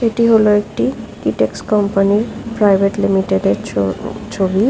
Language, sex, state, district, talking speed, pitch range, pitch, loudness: Bengali, female, West Bengal, Paschim Medinipur, 140 wpm, 190-225 Hz, 205 Hz, -16 LUFS